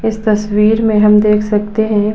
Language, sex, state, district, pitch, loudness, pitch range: Hindi, female, Uttar Pradesh, Budaun, 210 Hz, -12 LUFS, 210-220 Hz